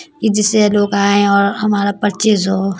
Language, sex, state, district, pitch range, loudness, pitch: Hindi, female, Bihar, Muzaffarpur, 200-215 Hz, -14 LUFS, 205 Hz